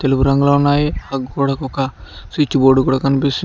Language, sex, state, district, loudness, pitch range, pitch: Telugu, male, Telangana, Mahabubabad, -16 LUFS, 135-140 Hz, 135 Hz